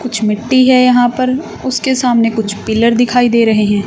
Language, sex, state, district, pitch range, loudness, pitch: Hindi, female, Haryana, Charkhi Dadri, 220-255 Hz, -12 LUFS, 240 Hz